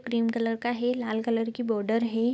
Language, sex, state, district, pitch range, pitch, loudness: Hindi, female, Bihar, Gopalganj, 225-240 Hz, 230 Hz, -28 LUFS